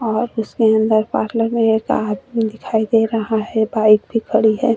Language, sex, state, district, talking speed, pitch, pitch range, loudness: Hindi, female, Uttar Pradesh, Jalaun, 190 wpm, 220 Hz, 220-230 Hz, -17 LUFS